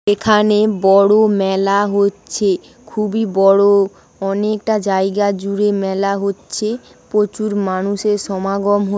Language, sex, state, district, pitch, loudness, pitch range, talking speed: Bengali, female, West Bengal, Dakshin Dinajpur, 200 Hz, -16 LUFS, 195-210 Hz, 95 wpm